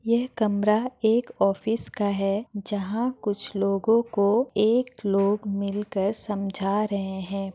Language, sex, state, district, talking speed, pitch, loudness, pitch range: Hindi, female, Bihar, Madhepura, 135 wpm, 205 Hz, -25 LUFS, 195-225 Hz